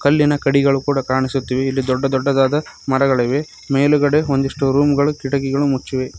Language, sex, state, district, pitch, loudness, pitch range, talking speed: Kannada, male, Karnataka, Koppal, 135 Hz, -17 LUFS, 135-145 Hz, 125 wpm